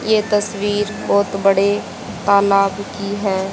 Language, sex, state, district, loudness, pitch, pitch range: Hindi, female, Haryana, Jhajjar, -17 LUFS, 200 Hz, 195-205 Hz